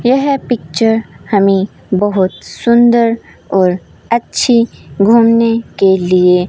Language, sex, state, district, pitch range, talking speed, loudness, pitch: Hindi, female, Rajasthan, Bikaner, 190-235 Hz, 100 wpm, -12 LUFS, 225 Hz